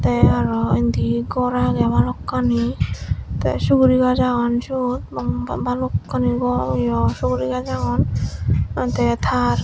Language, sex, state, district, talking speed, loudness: Chakma, female, Tripura, Dhalai, 120 wpm, -20 LUFS